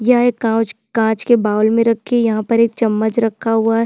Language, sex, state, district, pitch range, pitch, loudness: Hindi, female, Chhattisgarh, Sukma, 220-230 Hz, 225 Hz, -16 LUFS